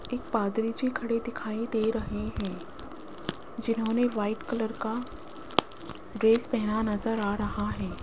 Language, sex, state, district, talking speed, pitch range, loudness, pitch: Hindi, female, Rajasthan, Jaipur, 140 wpm, 210-240 Hz, -29 LUFS, 225 Hz